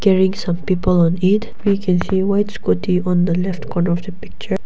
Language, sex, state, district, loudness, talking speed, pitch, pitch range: English, female, Nagaland, Kohima, -18 LUFS, 220 wpm, 185 Hz, 175-195 Hz